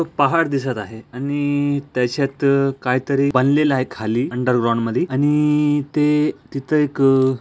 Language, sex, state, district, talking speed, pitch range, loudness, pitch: Marathi, male, Maharashtra, Aurangabad, 140 wpm, 125-145 Hz, -19 LUFS, 140 Hz